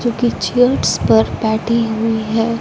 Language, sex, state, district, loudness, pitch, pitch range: Hindi, female, Punjab, Fazilka, -16 LUFS, 225 Hz, 220-235 Hz